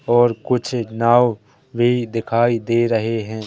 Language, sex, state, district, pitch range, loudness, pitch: Hindi, male, Madhya Pradesh, Katni, 115-120 Hz, -18 LUFS, 120 Hz